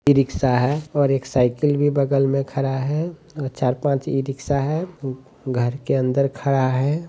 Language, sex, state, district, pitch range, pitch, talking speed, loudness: Hindi, male, Bihar, Saran, 130-145 Hz, 135 Hz, 170 wpm, -21 LUFS